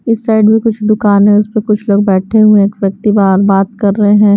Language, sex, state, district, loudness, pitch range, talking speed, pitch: Hindi, female, Bihar, West Champaran, -10 LUFS, 200-215 Hz, 275 wpm, 205 Hz